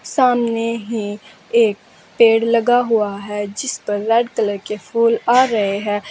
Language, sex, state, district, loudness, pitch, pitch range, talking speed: Hindi, female, Uttar Pradesh, Saharanpur, -17 LUFS, 225 Hz, 205-235 Hz, 155 wpm